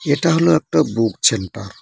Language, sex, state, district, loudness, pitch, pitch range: Bengali, male, West Bengal, Cooch Behar, -17 LUFS, 115 Hz, 100-160 Hz